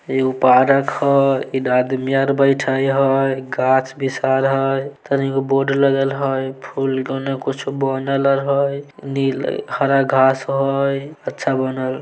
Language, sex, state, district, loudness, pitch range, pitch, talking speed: Maithili, male, Bihar, Samastipur, -18 LUFS, 130-135 Hz, 135 Hz, 150 wpm